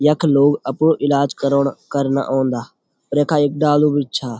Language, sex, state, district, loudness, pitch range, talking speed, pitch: Garhwali, male, Uttarakhand, Uttarkashi, -17 LUFS, 135-145 Hz, 165 wpm, 140 Hz